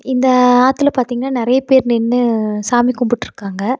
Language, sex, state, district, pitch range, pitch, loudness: Tamil, female, Tamil Nadu, Nilgiris, 235-260 Hz, 245 Hz, -14 LUFS